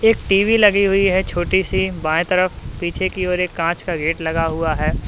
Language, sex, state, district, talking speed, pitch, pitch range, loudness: Hindi, male, Uttar Pradesh, Lalitpur, 215 wpm, 180 Hz, 165-190 Hz, -18 LUFS